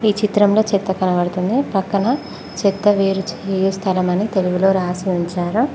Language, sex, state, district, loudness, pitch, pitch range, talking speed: Telugu, female, Telangana, Mahabubabad, -18 LUFS, 195 Hz, 185-205 Hz, 115 wpm